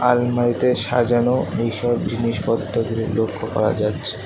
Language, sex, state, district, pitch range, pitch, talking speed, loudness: Bengali, male, West Bengal, Kolkata, 115-120 Hz, 115 Hz, 100 wpm, -20 LUFS